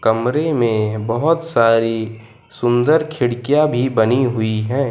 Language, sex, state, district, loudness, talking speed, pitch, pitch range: Hindi, male, Gujarat, Valsad, -17 LUFS, 120 wpm, 120 Hz, 115-140 Hz